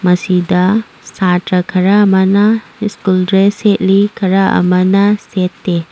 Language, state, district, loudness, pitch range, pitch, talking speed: Manipuri, Manipur, Imphal West, -12 LUFS, 180-205 Hz, 190 Hz, 100 wpm